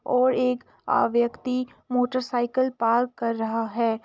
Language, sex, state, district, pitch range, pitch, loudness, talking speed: Hindi, female, Uttar Pradesh, Etah, 235-255 Hz, 245 Hz, -25 LUFS, 150 wpm